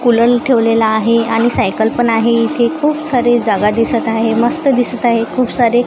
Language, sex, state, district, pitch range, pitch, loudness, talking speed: Marathi, female, Maharashtra, Gondia, 230-245 Hz, 235 Hz, -13 LUFS, 185 wpm